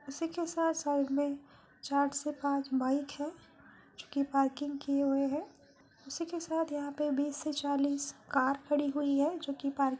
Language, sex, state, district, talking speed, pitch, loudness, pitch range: Hindi, female, Bihar, Jamui, 185 wpm, 285 Hz, -33 LUFS, 280-295 Hz